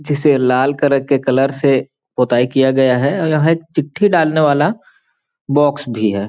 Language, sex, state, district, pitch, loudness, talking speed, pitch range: Hindi, male, Chhattisgarh, Balrampur, 140 Hz, -15 LUFS, 180 wpm, 130-155 Hz